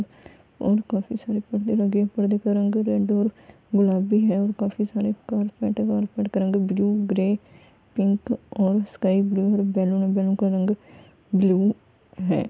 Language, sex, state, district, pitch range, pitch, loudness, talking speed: Hindi, female, Bihar, Gopalganj, 195-210 Hz, 205 Hz, -23 LUFS, 175 wpm